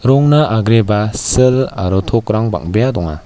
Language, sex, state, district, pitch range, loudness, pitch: Garo, male, Meghalaya, West Garo Hills, 100-130 Hz, -13 LUFS, 110 Hz